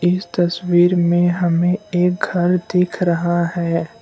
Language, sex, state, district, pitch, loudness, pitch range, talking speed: Hindi, male, Assam, Kamrup Metropolitan, 175 Hz, -17 LUFS, 175-180 Hz, 135 wpm